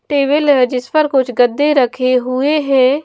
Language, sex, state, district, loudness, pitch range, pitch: Hindi, female, Maharashtra, Washim, -14 LUFS, 255-290 Hz, 265 Hz